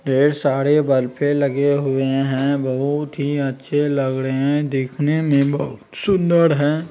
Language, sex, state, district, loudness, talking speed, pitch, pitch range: Magahi, male, Bihar, Gaya, -19 LUFS, 150 wpm, 140 Hz, 135-145 Hz